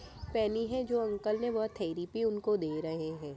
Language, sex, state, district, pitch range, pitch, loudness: Hindi, female, Bihar, Jamui, 160-225 Hz, 215 Hz, -34 LUFS